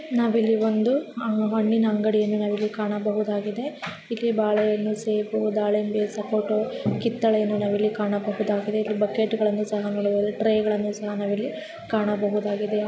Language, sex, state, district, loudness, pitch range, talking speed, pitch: Kannada, female, Karnataka, Chamarajanagar, -24 LUFS, 210-220 Hz, 110 wpm, 210 Hz